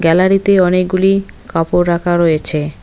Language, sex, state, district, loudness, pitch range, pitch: Bengali, female, West Bengal, Cooch Behar, -13 LUFS, 165-185 Hz, 175 Hz